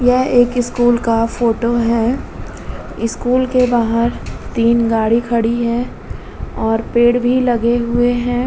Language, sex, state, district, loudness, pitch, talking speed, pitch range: Hindi, female, Uttar Pradesh, Muzaffarnagar, -15 LUFS, 240 Hz, 135 wpm, 230-245 Hz